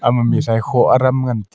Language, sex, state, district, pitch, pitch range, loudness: Wancho, male, Arunachal Pradesh, Longding, 120 Hz, 120-130 Hz, -15 LUFS